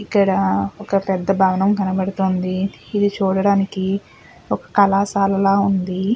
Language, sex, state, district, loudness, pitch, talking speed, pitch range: Telugu, female, Andhra Pradesh, Guntur, -18 LUFS, 195 Hz, 95 wpm, 190-200 Hz